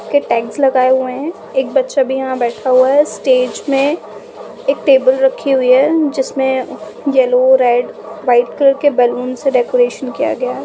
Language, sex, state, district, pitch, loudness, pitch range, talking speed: Hindi, female, Uttar Pradesh, Budaun, 265 Hz, -14 LUFS, 250-275 Hz, 170 wpm